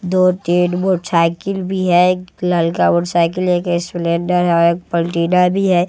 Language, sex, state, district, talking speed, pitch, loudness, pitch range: Hindi, male, Bihar, West Champaran, 155 wpm, 175 Hz, -16 LUFS, 170-185 Hz